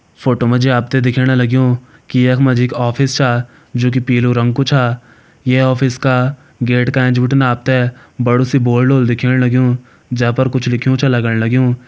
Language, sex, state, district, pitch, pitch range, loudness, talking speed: Hindi, male, Uttarakhand, Uttarkashi, 125 Hz, 120-130 Hz, -14 LUFS, 210 wpm